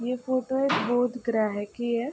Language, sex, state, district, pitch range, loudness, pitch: Hindi, female, Uttar Pradesh, Ghazipur, 235-255 Hz, -27 LUFS, 245 Hz